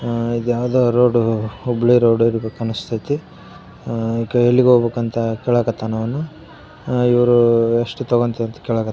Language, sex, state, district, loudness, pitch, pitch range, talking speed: Kannada, male, Karnataka, Raichur, -18 LUFS, 120 Hz, 115-120 Hz, 140 wpm